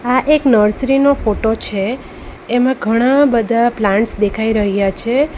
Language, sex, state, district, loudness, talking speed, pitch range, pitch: Gujarati, female, Gujarat, Valsad, -14 LUFS, 145 wpm, 210-260 Hz, 230 Hz